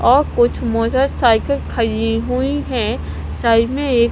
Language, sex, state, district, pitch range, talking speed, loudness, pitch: Hindi, female, Punjab, Kapurthala, 230-270 Hz, 130 wpm, -17 LUFS, 235 Hz